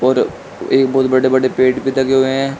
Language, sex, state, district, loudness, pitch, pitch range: Hindi, male, Uttar Pradesh, Shamli, -15 LUFS, 130 Hz, 130-135 Hz